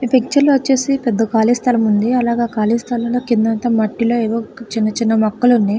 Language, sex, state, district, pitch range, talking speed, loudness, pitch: Telugu, female, Telangana, Karimnagar, 225-245 Hz, 195 wpm, -16 LUFS, 235 Hz